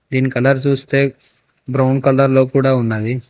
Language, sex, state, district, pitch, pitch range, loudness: Telugu, male, Telangana, Hyderabad, 135 Hz, 130-135 Hz, -15 LUFS